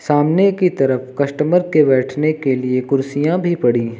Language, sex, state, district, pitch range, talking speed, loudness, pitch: Hindi, male, Uttar Pradesh, Lucknow, 130-155 Hz, 180 wpm, -16 LUFS, 145 Hz